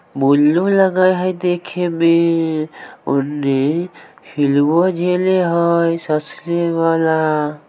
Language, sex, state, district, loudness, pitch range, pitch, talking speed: Maithili, male, Bihar, Samastipur, -16 LUFS, 150-175 Hz, 165 Hz, 85 wpm